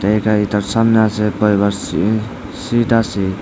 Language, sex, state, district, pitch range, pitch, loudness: Bengali, male, Tripura, West Tripura, 100-110 Hz, 105 Hz, -16 LUFS